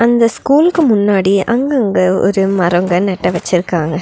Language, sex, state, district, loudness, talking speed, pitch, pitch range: Tamil, female, Tamil Nadu, Nilgiris, -13 LUFS, 120 wpm, 195 Hz, 180-235 Hz